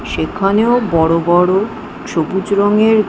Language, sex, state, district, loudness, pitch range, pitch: Bengali, female, West Bengal, Jhargram, -14 LUFS, 175-220 Hz, 200 Hz